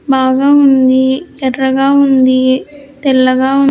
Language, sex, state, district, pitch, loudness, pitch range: Telugu, female, Andhra Pradesh, Sri Satya Sai, 265 Hz, -10 LUFS, 260-280 Hz